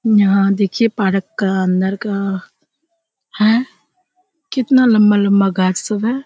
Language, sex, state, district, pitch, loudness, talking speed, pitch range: Hindi, female, Bihar, Kishanganj, 210 Hz, -15 LUFS, 105 wpm, 195-265 Hz